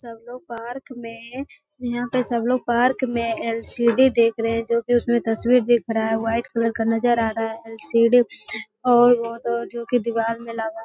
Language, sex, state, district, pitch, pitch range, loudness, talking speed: Hindi, female, Bihar, Jamui, 235 Hz, 230-245 Hz, -21 LUFS, 210 wpm